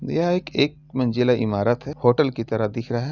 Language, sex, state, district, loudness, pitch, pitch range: Hindi, male, Uttar Pradesh, Jalaun, -22 LUFS, 125 Hz, 115-150 Hz